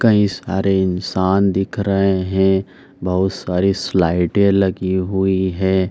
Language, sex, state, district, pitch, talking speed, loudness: Hindi, male, Bihar, Saran, 95 Hz, 120 wpm, -17 LUFS